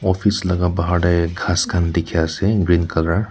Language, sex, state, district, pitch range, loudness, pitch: Nagamese, male, Nagaland, Kohima, 85-95 Hz, -18 LUFS, 90 Hz